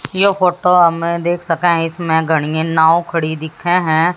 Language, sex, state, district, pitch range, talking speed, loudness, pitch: Hindi, female, Haryana, Jhajjar, 160-175 Hz, 170 wpm, -15 LUFS, 170 Hz